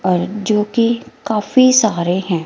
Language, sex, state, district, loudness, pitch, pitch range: Hindi, female, Himachal Pradesh, Shimla, -15 LUFS, 210 Hz, 185-230 Hz